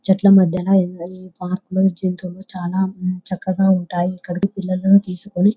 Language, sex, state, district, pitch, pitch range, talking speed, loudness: Telugu, female, Telangana, Nalgonda, 185 Hz, 180-190 Hz, 130 wpm, -18 LUFS